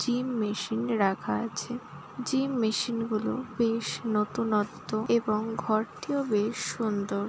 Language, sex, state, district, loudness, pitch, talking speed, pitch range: Bengali, female, West Bengal, Jalpaiguri, -29 LUFS, 220 Hz, 105 wpm, 210-240 Hz